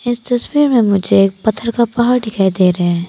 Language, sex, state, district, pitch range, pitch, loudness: Hindi, female, Arunachal Pradesh, Papum Pare, 195-240 Hz, 220 Hz, -14 LUFS